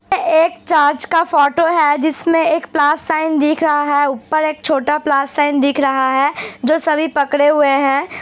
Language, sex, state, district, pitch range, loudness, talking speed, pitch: Hindi, female, Uttar Pradesh, Hamirpur, 285-320 Hz, -15 LUFS, 190 wpm, 300 Hz